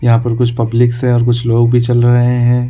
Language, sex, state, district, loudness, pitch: Hindi, male, Chhattisgarh, Korba, -12 LUFS, 120 Hz